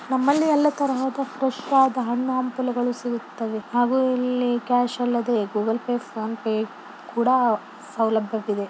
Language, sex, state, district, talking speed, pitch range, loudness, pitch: Kannada, female, Karnataka, Belgaum, 115 wpm, 225-260 Hz, -23 LUFS, 245 Hz